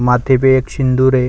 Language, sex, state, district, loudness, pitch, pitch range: Hindi, male, Chhattisgarh, Sukma, -13 LUFS, 130 Hz, 125-130 Hz